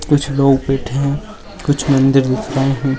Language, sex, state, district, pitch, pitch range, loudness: Magahi, male, Bihar, Jahanabad, 135 Hz, 135-145 Hz, -16 LUFS